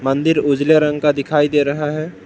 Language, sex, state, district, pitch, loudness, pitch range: Hindi, male, Jharkhand, Palamu, 150 Hz, -16 LUFS, 145-155 Hz